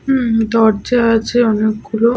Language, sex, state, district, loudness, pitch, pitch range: Bengali, female, Jharkhand, Sahebganj, -14 LUFS, 225 Hz, 220-240 Hz